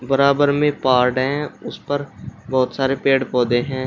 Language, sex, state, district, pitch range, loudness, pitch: Hindi, male, Uttar Pradesh, Shamli, 125-140 Hz, -19 LUFS, 135 Hz